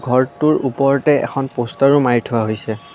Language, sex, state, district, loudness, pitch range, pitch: Assamese, female, Assam, Kamrup Metropolitan, -16 LUFS, 120-140 Hz, 130 Hz